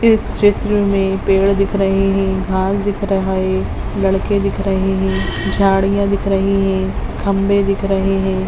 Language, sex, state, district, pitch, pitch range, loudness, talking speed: Hindi, female, Bihar, Madhepura, 195 Hz, 190-200 Hz, -16 LUFS, 165 wpm